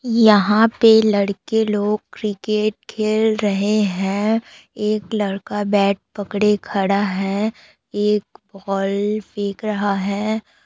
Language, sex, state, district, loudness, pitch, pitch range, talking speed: Hindi, female, Chhattisgarh, Raigarh, -19 LUFS, 210 Hz, 200-215 Hz, 105 wpm